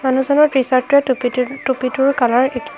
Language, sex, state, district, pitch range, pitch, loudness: Assamese, female, Assam, Hailakandi, 255-275 Hz, 265 Hz, -16 LUFS